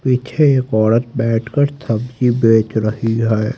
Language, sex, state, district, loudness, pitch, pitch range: Hindi, male, Haryana, Rohtak, -16 LUFS, 115 Hz, 110-130 Hz